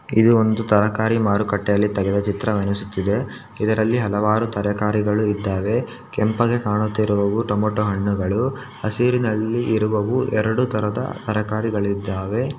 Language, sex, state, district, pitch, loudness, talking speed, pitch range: Kannada, male, Karnataka, Shimoga, 105 Hz, -21 LUFS, 95 wpm, 105-115 Hz